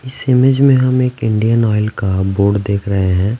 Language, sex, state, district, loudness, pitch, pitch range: Hindi, male, Bihar, Patna, -14 LUFS, 110 Hz, 100-130 Hz